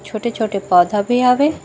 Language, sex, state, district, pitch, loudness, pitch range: Chhattisgarhi, female, Chhattisgarh, Raigarh, 220 Hz, -16 LUFS, 200-250 Hz